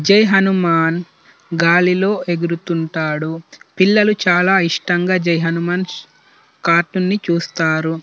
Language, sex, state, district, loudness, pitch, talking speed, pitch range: Telugu, male, Telangana, Nalgonda, -16 LUFS, 175 Hz, 95 wpm, 165-190 Hz